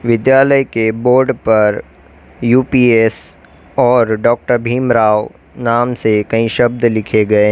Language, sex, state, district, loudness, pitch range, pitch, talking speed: Hindi, female, Uttar Pradesh, Lalitpur, -13 LUFS, 110-120 Hz, 115 Hz, 120 wpm